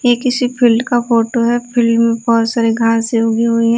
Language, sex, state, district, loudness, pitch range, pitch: Hindi, female, Delhi, New Delhi, -14 LUFS, 230-240 Hz, 235 Hz